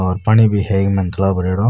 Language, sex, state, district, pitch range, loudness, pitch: Rajasthani, male, Rajasthan, Nagaur, 95-105 Hz, -15 LUFS, 95 Hz